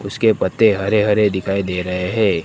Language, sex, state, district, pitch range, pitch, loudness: Hindi, male, Gujarat, Gandhinagar, 95-110 Hz, 100 Hz, -17 LUFS